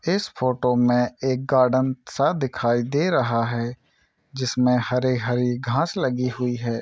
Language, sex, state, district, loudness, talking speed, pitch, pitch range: Hindi, male, Bihar, Saran, -22 LUFS, 150 wpm, 125 Hz, 120-130 Hz